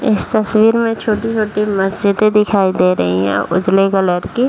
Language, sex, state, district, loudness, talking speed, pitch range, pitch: Hindi, male, Bihar, Jahanabad, -14 LUFS, 160 wpm, 190-220 Hz, 205 Hz